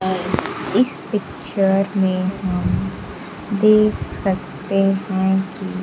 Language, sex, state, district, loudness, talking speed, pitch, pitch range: Hindi, female, Bihar, Kaimur, -20 LUFS, 80 wpm, 190 Hz, 180-195 Hz